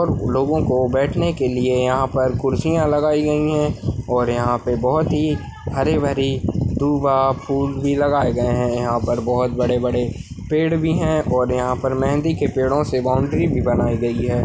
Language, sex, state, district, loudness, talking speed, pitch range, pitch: Hindi, male, Maharashtra, Nagpur, -19 LUFS, 165 wpm, 125-150 Hz, 130 Hz